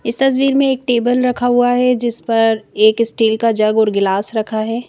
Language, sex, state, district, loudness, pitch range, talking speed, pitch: Hindi, female, Madhya Pradesh, Bhopal, -15 LUFS, 220-245 Hz, 220 wpm, 230 Hz